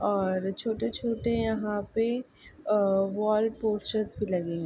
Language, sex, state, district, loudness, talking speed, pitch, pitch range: Hindi, female, Uttar Pradesh, Ghazipur, -29 LUFS, 130 wpm, 215 Hz, 195-225 Hz